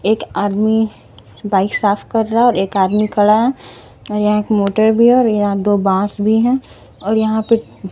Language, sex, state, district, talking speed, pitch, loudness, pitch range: Hindi, female, Bihar, Katihar, 195 wpm, 210 Hz, -15 LUFS, 200-220 Hz